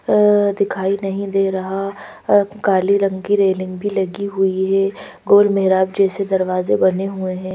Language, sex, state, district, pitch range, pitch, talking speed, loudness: Hindi, female, Madhya Pradesh, Bhopal, 190-200 Hz, 195 Hz, 160 wpm, -17 LUFS